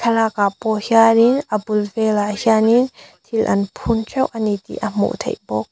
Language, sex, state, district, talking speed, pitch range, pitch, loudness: Mizo, female, Mizoram, Aizawl, 190 wpm, 210-230 Hz, 220 Hz, -18 LUFS